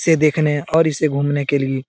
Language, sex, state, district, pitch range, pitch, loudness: Hindi, male, Bihar, Jahanabad, 140-155 Hz, 145 Hz, -17 LUFS